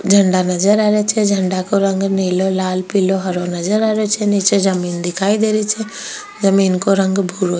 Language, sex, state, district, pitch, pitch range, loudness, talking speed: Rajasthani, female, Rajasthan, Nagaur, 195 Hz, 185-210 Hz, -16 LUFS, 215 wpm